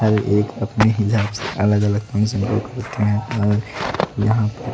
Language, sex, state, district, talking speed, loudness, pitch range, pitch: Hindi, male, Odisha, Nuapada, 140 wpm, -20 LUFS, 105-110 Hz, 105 Hz